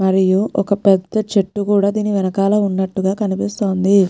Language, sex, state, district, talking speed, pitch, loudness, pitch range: Telugu, female, Telangana, Nalgonda, 130 wpm, 195 Hz, -17 LUFS, 190-205 Hz